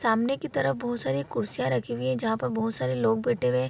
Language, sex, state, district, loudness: Hindi, female, Bihar, Vaishali, -27 LUFS